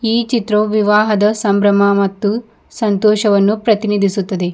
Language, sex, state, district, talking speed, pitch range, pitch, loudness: Kannada, female, Karnataka, Bidar, 90 wpm, 200-215 Hz, 210 Hz, -14 LUFS